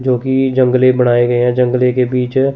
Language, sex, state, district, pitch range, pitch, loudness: Hindi, male, Chandigarh, Chandigarh, 125-130 Hz, 125 Hz, -13 LUFS